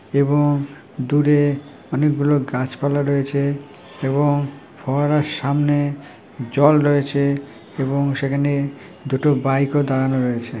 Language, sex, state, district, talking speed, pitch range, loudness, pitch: Bengali, female, West Bengal, Malda, 90 wpm, 135-145 Hz, -19 LUFS, 140 Hz